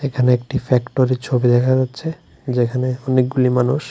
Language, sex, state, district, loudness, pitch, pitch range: Bengali, male, Tripura, West Tripura, -18 LUFS, 125 Hz, 125-130 Hz